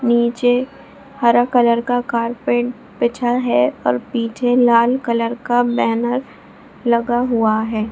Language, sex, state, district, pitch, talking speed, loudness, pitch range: Hindi, female, Bihar, Supaul, 240 Hz, 120 wpm, -17 LUFS, 235-245 Hz